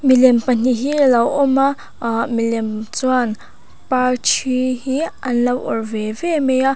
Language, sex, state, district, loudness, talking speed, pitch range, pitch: Mizo, female, Mizoram, Aizawl, -17 LUFS, 160 wpm, 230-270 Hz, 255 Hz